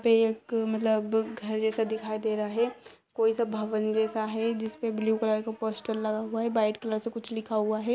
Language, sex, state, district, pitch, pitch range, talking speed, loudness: Hindi, female, Bihar, East Champaran, 220 Hz, 215-225 Hz, 220 wpm, -29 LUFS